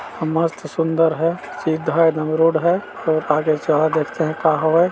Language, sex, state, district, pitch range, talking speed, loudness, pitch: Chhattisgarhi, male, Chhattisgarh, Balrampur, 155-165 Hz, 180 wpm, -19 LUFS, 160 Hz